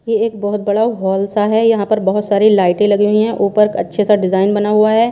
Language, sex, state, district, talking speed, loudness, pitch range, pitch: Hindi, female, Haryana, Charkhi Dadri, 260 wpm, -14 LUFS, 205-215 Hz, 210 Hz